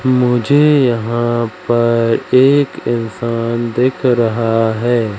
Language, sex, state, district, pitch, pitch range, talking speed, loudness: Hindi, male, Madhya Pradesh, Katni, 120 Hz, 115-125 Hz, 90 wpm, -14 LUFS